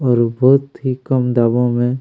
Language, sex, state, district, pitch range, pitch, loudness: Hindi, male, Chhattisgarh, Kabirdham, 120-130 Hz, 125 Hz, -16 LUFS